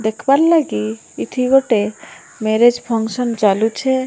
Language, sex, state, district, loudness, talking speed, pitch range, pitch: Odia, female, Odisha, Malkangiri, -16 LUFS, 105 wpm, 215-260 Hz, 230 Hz